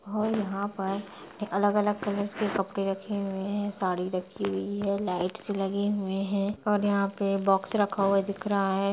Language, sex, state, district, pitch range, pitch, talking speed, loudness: Hindi, female, Bihar, Gaya, 195-205 Hz, 200 Hz, 180 wpm, -28 LUFS